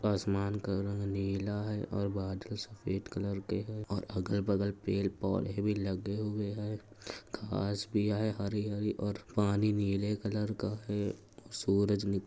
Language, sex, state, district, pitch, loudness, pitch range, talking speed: Hindi, male, Uttar Pradesh, Etah, 100 Hz, -35 LUFS, 100-105 Hz, 165 wpm